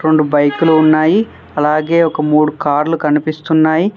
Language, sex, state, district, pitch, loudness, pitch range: Telugu, male, Telangana, Hyderabad, 155 Hz, -13 LUFS, 150-160 Hz